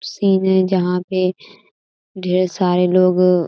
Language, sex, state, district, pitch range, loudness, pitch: Hindi, female, Uttar Pradesh, Gorakhpur, 180-190 Hz, -16 LUFS, 185 Hz